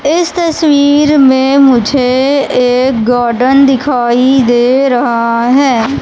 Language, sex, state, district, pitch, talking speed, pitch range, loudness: Hindi, female, Madhya Pradesh, Katni, 260 Hz, 100 wpm, 245-280 Hz, -9 LUFS